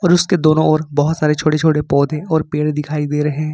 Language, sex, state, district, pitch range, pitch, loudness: Hindi, male, Jharkhand, Ranchi, 150-155 Hz, 155 Hz, -16 LUFS